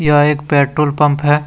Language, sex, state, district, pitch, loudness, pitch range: Hindi, male, Jharkhand, Deoghar, 150 Hz, -14 LUFS, 145-150 Hz